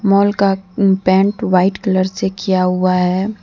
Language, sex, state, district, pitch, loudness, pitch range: Hindi, female, Jharkhand, Deoghar, 190 Hz, -15 LUFS, 185-200 Hz